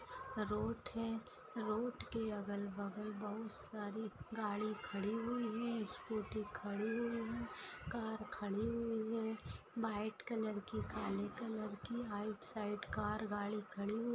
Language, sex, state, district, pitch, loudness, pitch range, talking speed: Hindi, female, Maharashtra, Pune, 215 Hz, -43 LUFS, 210-230 Hz, 135 wpm